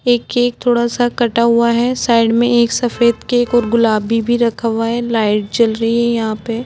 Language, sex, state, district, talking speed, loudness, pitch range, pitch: Hindi, female, Uttar Pradesh, Budaun, 225 wpm, -15 LUFS, 230-240 Hz, 235 Hz